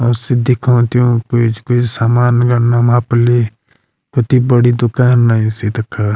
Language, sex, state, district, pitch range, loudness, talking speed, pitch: Garhwali, male, Uttarakhand, Uttarkashi, 115-125 Hz, -13 LUFS, 145 wpm, 120 Hz